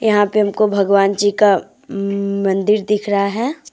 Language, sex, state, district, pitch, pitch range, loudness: Hindi, female, Jharkhand, Deoghar, 205 Hz, 200-210 Hz, -16 LUFS